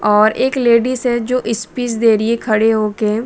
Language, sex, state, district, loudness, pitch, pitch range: Hindi, female, Jharkhand, Sahebganj, -15 LUFS, 230 Hz, 215-245 Hz